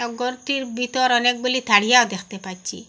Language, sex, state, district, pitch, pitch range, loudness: Bengali, female, Assam, Hailakandi, 245 Hz, 205-250 Hz, -19 LUFS